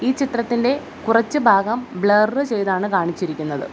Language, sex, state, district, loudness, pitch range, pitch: Malayalam, female, Kerala, Kollam, -19 LUFS, 195-250 Hz, 225 Hz